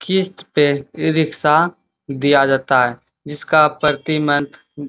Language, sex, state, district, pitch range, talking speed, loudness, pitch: Hindi, male, Bihar, Bhagalpur, 140-155 Hz, 135 wpm, -16 LUFS, 150 Hz